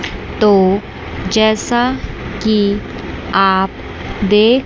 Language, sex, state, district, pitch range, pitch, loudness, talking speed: Hindi, female, Chandigarh, Chandigarh, 195-220 Hz, 210 Hz, -15 LUFS, 65 wpm